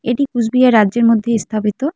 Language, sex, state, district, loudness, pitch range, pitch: Bengali, female, West Bengal, Cooch Behar, -14 LUFS, 220-250 Hz, 235 Hz